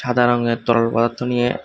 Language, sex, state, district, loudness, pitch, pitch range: Bengali, male, Tripura, West Tripura, -18 LUFS, 120 Hz, 115-125 Hz